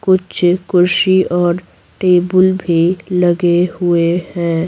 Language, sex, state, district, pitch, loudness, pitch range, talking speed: Hindi, female, Bihar, Patna, 180 Hz, -14 LUFS, 175-185 Hz, 105 wpm